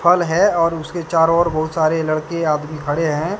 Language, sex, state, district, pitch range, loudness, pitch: Hindi, male, Jharkhand, Deoghar, 155-170 Hz, -18 LUFS, 165 Hz